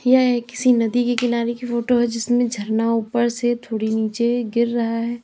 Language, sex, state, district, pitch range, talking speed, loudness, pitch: Hindi, female, Uttar Pradesh, Lalitpur, 230-245 Hz, 205 wpm, -20 LUFS, 235 Hz